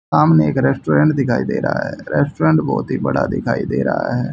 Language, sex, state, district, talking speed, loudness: Hindi, male, Haryana, Rohtak, 210 wpm, -17 LUFS